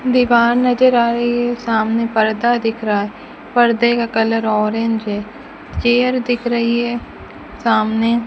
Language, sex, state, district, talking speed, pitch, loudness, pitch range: Hindi, female, Rajasthan, Bikaner, 150 wpm, 235 Hz, -16 LUFS, 225-240 Hz